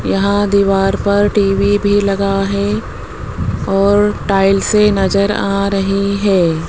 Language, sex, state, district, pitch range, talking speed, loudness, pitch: Hindi, female, Rajasthan, Jaipur, 195-205 Hz, 115 wpm, -14 LUFS, 200 Hz